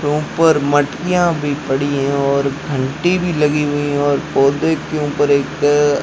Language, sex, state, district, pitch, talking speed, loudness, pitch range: Hindi, male, Rajasthan, Jaisalmer, 145 Hz, 160 wpm, -16 LUFS, 140-150 Hz